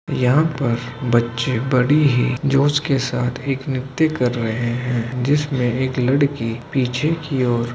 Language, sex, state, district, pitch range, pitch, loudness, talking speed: Hindi, male, Uttar Pradesh, Hamirpur, 120-140 Hz, 130 Hz, -19 LUFS, 155 wpm